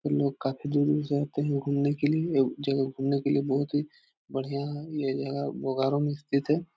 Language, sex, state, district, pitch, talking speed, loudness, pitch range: Hindi, male, Bihar, Jahanabad, 140 Hz, 210 wpm, -28 LUFS, 140-145 Hz